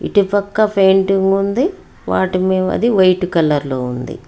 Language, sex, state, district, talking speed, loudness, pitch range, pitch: Telugu, female, Telangana, Hyderabad, 125 wpm, -15 LUFS, 180-200 Hz, 190 Hz